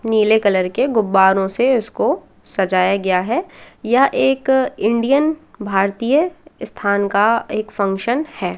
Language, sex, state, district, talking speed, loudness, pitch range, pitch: Hindi, female, Madhya Pradesh, Katni, 125 wpm, -17 LUFS, 200-265 Hz, 220 Hz